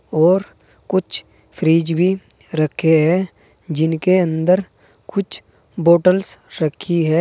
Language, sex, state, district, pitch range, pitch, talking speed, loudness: Hindi, male, Uttar Pradesh, Saharanpur, 160-185 Hz, 170 Hz, 100 wpm, -18 LUFS